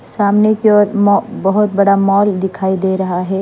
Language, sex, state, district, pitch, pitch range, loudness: Hindi, female, Maharashtra, Mumbai Suburban, 200 Hz, 190-205 Hz, -13 LUFS